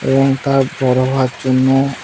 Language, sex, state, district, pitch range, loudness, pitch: Bengali, male, West Bengal, Cooch Behar, 130-135 Hz, -15 LUFS, 135 Hz